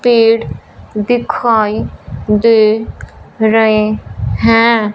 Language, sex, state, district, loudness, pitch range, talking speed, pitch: Hindi, male, Punjab, Fazilka, -12 LUFS, 215-230 Hz, 60 wpm, 225 Hz